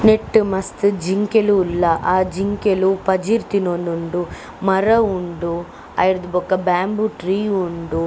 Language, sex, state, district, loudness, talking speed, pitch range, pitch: Tulu, female, Karnataka, Dakshina Kannada, -19 LUFS, 110 wpm, 175-205 Hz, 190 Hz